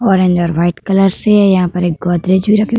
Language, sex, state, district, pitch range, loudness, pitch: Hindi, female, Uttar Pradesh, Hamirpur, 175-200 Hz, -12 LUFS, 185 Hz